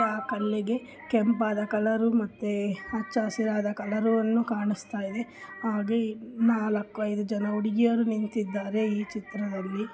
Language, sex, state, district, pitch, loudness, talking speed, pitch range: Kannada, female, Karnataka, Dharwad, 215 Hz, -28 LUFS, 50 wpm, 210-225 Hz